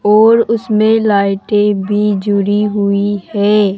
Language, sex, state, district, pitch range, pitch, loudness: Hindi, male, Rajasthan, Jaipur, 200-215 Hz, 205 Hz, -13 LUFS